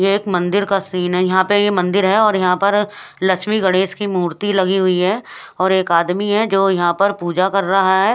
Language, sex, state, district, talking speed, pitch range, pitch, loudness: Hindi, female, Odisha, Khordha, 245 wpm, 185-200 Hz, 190 Hz, -16 LUFS